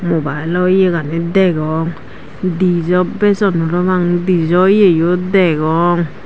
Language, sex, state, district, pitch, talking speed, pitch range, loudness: Chakma, female, Tripura, Dhalai, 175 Hz, 85 wpm, 165-185 Hz, -14 LUFS